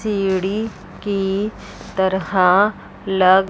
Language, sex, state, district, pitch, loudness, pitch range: Hindi, female, Chandigarh, Chandigarh, 195 Hz, -19 LUFS, 190-205 Hz